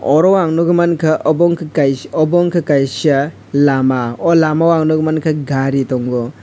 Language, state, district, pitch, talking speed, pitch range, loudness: Kokborok, Tripura, West Tripura, 155 Hz, 170 wpm, 135-165 Hz, -14 LUFS